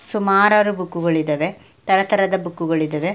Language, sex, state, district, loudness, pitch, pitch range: Kannada, female, Karnataka, Mysore, -18 LUFS, 185 Hz, 165-195 Hz